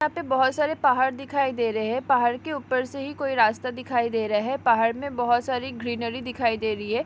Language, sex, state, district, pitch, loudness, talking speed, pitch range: Hindi, female, Uttarakhand, Tehri Garhwal, 250 Hz, -24 LUFS, 245 wpm, 235-270 Hz